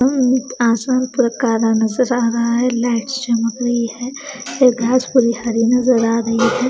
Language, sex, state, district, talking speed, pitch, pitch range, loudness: Hindi, female, Haryana, Charkhi Dadri, 150 wpm, 240 Hz, 235-255 Hz, -16 LUFS